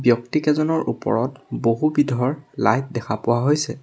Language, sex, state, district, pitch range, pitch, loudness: Assamese, male, Assam, Sonitpur, 120-150 Hz, 130 Hz, -21 LUFS